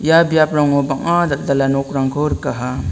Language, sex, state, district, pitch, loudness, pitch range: Garo, male, Meghalaya, South Garo Hills, 140 Hz, -16 LUFS, 135-155 Hz